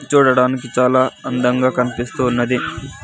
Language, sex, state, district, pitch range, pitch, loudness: Telugu, male, Andhra Pradesh, Sri Satya Sai, 125-130 Hz, 125 Hz, -17 LUFS